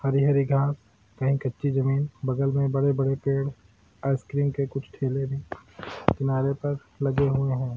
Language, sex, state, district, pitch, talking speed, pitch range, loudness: Hindi, male, Bihar, Madhepura, 135 Hz, 155 wpm, 135-140 Hz, -26 LUFS